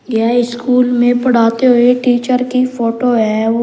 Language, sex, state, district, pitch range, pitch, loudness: Hindi, male, Uttar Pradesh, Shamli, 230-250 Hz, 245 Hz, -13 LUFS